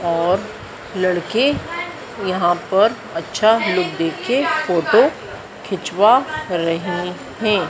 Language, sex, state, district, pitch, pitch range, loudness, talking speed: Hindi, female, Madhya Pradesh, Dhar, 195 Hz, 175-235 Hz, -18 LUFS, 85 wpm